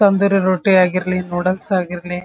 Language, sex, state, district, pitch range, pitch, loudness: Kannada, female, Karnataka, Dharwad, 180-190 Hz, 185 Hz, -17 LUFS